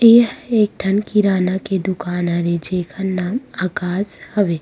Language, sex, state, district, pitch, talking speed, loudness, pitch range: Chhattisgarhi, female, Chhattisgarh, Rajnandgaon, 190 Hz, 155 wpm, -19 LUFS, 180-210 Hz